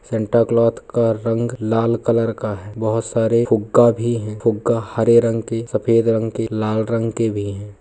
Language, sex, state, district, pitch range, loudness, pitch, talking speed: Hindi, male, Bihar, Purnia, 110-115 Hz, -18 LUFS, 115 Hz, 190 wpm